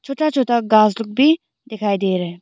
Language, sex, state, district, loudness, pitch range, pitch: Hindi, female, Arunachal Pradesh, Longding, -17 LUFS, 205-270 Hz, 225 Hz